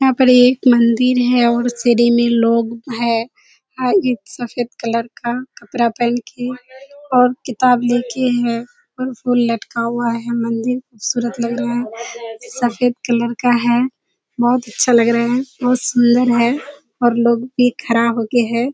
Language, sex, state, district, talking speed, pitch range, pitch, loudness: Hindi, female, Bihar, Kishanganj, 165 wpm, 235-250 Hz, 240 Hz, -16 LUFS